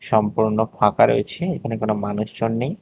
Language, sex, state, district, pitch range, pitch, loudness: Bengali, male, Tripura, West Tripura, 105-120 Hz, 110 Hz, -21 LUFS